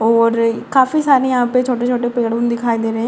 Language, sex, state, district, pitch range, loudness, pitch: Hindi, female, Bihar, Jamui, 230-250 Hz, -16 LUFS, 240 Hz